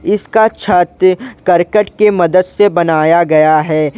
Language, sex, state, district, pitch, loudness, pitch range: Hindi, male, Jharkhand, Ranchi, 180 Hz, -11 LUFS, 165-205 Hz